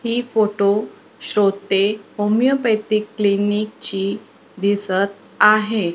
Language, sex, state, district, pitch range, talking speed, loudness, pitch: Marathi, female, Maharashtra, Gondia, 200-215 Hz, 70 wpm, -19 LUFS, 210 Hz